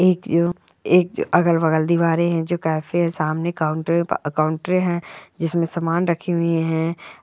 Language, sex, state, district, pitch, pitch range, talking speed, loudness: Hindi, female, Chhattisgarh, Bilaspur, 170 Hz, 160-175 Hz, 175 wpm, -20 LUFS